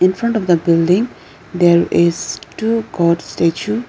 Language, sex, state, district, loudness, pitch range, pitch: English, female, Arunachal Pradesh, Lower Dibang Valley, -16 LUFS, 170-220 Hz, 175 Hz